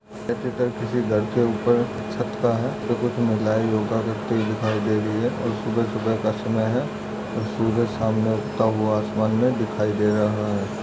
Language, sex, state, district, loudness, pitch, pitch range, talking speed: Hindi, male, Maharashtra, Solapur, -23 LUFS, 110 Hz, 110-115 Hz, 190 wpm